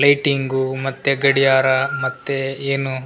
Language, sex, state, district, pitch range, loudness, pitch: Kannada, male, Karnataka, Raichur, 130-140 Hz, -18 LUFS, 135 Hz